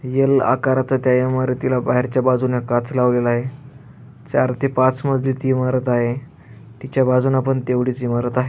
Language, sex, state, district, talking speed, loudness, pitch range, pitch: Marathi, male, Maharashtra, Aurangabad, 155 wpm, -19 LUFS, 125-130 Hz, 130 Hz